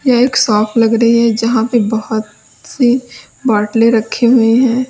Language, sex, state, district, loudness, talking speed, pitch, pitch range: Hindi, female, Uttar Pradesh, Lalitpur, -12 LUFS, 170 wpm, 230 Hz, 225-245 Hz